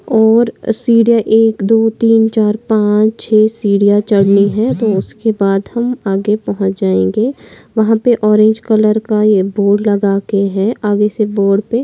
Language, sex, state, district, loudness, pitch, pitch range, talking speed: Hindi, female, Maharashtra, Pune, -12 LUFS, 215 Hz, 200-225 Hz, 165 wpm